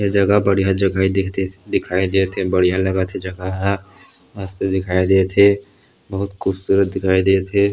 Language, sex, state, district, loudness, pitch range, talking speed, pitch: Chhattisgarhi, male, Chhattisgarh, Sarguja, -18 LUFS, 95-100 Hz, 165 wpm, 95 Hz